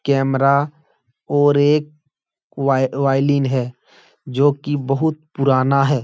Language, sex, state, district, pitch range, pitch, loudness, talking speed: Hindi, male, Uttar Pradesh, Etah, 135-145 Hz, 140 Hz, -18 LUFS, 110 wpm